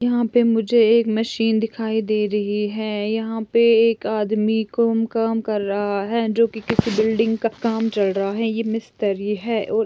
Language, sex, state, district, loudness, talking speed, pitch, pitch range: Hindi, female, Andhra Pradesh, Chittoor, -20 LUFS, 175 wpm, 225 Hz, 215-225 Hz